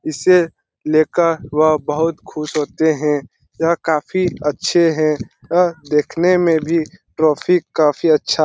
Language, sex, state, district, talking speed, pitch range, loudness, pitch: Hindi, male, Bihar, Lakhisarai, 130 wpm, 150-170 Hz, -17 LUFS, 155 Hz